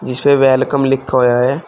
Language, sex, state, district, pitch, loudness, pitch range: Hindi, male, Uttar Pradesh, Shamli, 135 Hz, -13 LUFS, 125-140 Hz